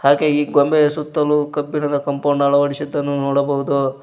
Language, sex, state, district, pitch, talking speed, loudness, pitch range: Kannada, male, Karnataka, Koppal, 145 Hz, 120 wpm, -18 LUFS, 140-150 Hz